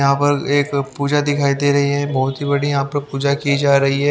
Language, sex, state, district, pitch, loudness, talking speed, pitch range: Hindi, male, Haryana, Jhajjar, 140 Hz, -17 LUFS, 265 wpm, 140-145 Hz